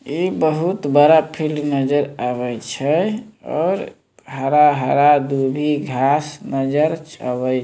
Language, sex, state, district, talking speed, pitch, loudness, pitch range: Maithili, male, Bihar, Samastipur, 110 wpm, 145 Hz, -18 LUFS, 135-155 Hz